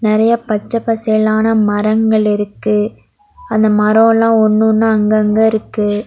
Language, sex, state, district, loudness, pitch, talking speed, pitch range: Tamil, female, Tamil Nadu, Nilgiris, -13 LUFS, 215 Hz, 110 wpm, 210-225 Hz